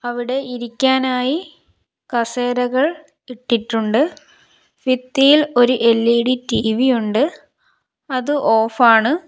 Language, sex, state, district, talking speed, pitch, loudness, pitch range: Malayalam, female, Kerala, Kollam, 70 wpm, 250 Hz, -17 LUFS, 235-285 Hz